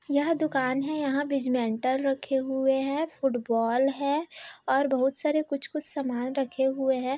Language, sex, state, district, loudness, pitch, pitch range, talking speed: Hindi, female, Bihar, Kishanganj, -27 LUFS, 270 Hz, 260-285 Hz, 150 wpm